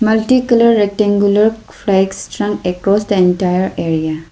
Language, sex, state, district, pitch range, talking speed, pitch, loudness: English, female, Arunachal Pradesh, Lower Dibang Valley, 180-220 Hz, 95 wpm, 200 Hz, -14 LUFS